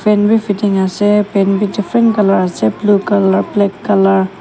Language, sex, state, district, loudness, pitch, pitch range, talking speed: Nagamese, female, Nagaland, Kohima, -13 LUFS, 200 Hz, 195-210 Hz, 190 wpm